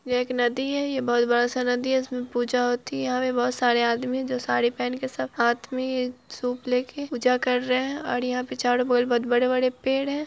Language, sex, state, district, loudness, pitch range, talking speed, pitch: Hindi, male, Bihar, Araria, -25 LUFS, 245-255 Hz, 235 wpm, 250 Hz